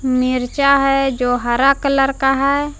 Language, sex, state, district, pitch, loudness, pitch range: Hindi, female, Jharkhand, Palamu, 270 Hz, -16 LUFS, 255-275 Hz